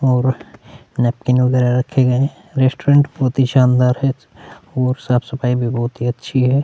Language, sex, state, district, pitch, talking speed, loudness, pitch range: Hindi, male, Chhattisgarh, Korba, 125 Hz, 155 wpm, -17 LUFS, 125-135 Hz